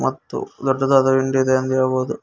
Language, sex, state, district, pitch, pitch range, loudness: Kannada, male, Karnataka, Koppal, 130 Hz, 130-135 Hz, -18 LUFS